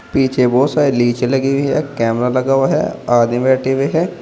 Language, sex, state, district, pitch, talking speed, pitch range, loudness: Hindi, male, Uttar Pradesh, Saharanpur, 135 Hz, 200 wpm, 125-140 Hz, -15 LUFS